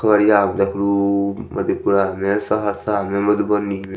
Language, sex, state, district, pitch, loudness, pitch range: Maithili, male, Bihar, Madhepura, 100 Hz, -18 LUFS, 100-105 Hz